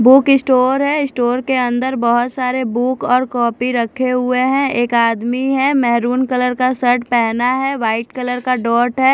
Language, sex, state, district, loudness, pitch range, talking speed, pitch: Hindi, female, Odisha, Khordha, -15 LUFS, 240-260 Hz, 190 wpm, 250 Hz